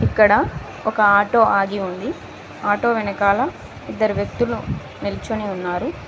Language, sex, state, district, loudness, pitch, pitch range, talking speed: Telugu, female, Telangana, Mahabubabad, -20 LUFS, 210 Hz, 200-230 Hz, 110 wpm